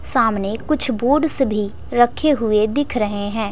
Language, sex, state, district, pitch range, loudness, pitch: Hindi, female, Bihar, West Champaran, 210-280 Hz, -17 LUFS, 230 Hz